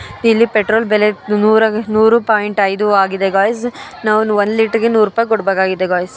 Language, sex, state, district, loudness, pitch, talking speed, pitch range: Kannada, female, Karnataka, Dharwad, -14 LUFS, 215 Hz, 185 wpm, 200-225 Hz